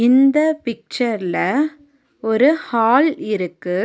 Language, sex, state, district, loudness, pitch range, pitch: Tamil, female, Tamil Nadu, Nilgiris, -18 LUFS, 220-290 Hz, 250 Hz